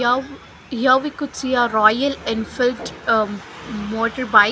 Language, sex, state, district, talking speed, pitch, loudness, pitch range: English, female, Punjab, Fazilka, 135 wpm, 240 Hz, -19 LUFS, 220-260 Hz